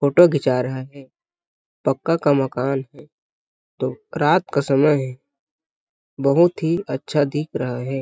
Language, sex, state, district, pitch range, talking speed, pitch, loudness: Hindi, male, Chhattisgarh, Balrampur, 135-155 Hz, 140 wpm, 140 Hz, -20 LUFS